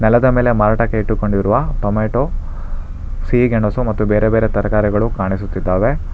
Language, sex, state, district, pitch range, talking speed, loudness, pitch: Kannada, male, Karnataka, Bangalore, 95-115 Hz, 115 wpm, -16 LUFS, 105 Hz